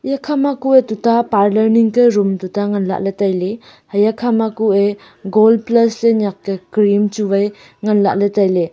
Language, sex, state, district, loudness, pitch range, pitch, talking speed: Wancho, female, Arunachal Pradesh, Longding, -15 LUFS, 200-230 Hz, 210 Hz, 150 wpm